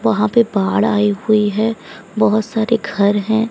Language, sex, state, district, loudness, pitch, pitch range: Hindi, female, Odisha, Sambalpur, -16 LUFS, 215 Hz, 205-220 Hz